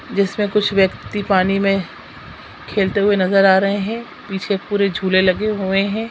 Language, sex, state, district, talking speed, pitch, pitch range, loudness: Hindi, female, Chhattisgarh, Sukma, 165 wpm, 195 Hz, 190-205 Hz, -17 LUFS